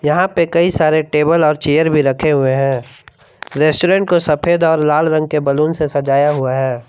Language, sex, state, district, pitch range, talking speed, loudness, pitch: Hindi, male, Jharkhand, Palamu, 140-160 Hz, 200 wpm, -14 LUFS, 150 Hz